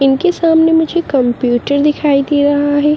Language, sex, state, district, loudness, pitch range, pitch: Hindi, female, Uttarakhand, Uttarkashi, -12 LUFS, 275-320 Hz, 290 Hz